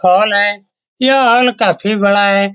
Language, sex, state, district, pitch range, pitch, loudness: Hindi, male, Bihar, Saran, 200-235 Hz, 205 Hz, -12 LUFS